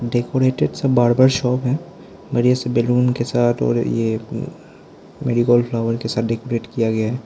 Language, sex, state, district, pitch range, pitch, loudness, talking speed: Hindi, male, Arunachal Pradesh, Lower Dibang Valley, 115-125 Hz, 120 Hz, -19 LUFS, 175 wpm